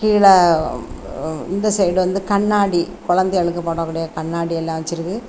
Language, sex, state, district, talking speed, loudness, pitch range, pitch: Tamil, female, Tamil Nadu, Kanyakumari, 125 wpm, -18 LUFS, 165-195 Hz, 175 Hz